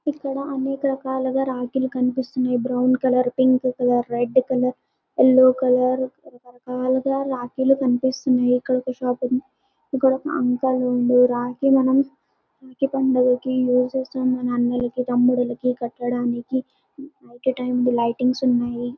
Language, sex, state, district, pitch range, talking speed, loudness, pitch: Telugu, female, Andhra Pradesh, Anantapur, 245-265 Hz, 125 wpm, -21 LUFS, 255 Hz